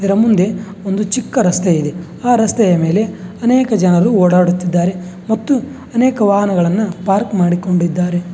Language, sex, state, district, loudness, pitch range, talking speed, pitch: Kannada, male, Karnataka, Bangalore, -14 LUFS, 180-220 Hz, 120 wpm, 195 Hz